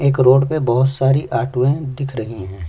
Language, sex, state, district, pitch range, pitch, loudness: Hindi, male, Chhattisgarh, Kabirdham, 115-135 Hz, 130 Hz, -17 LUFS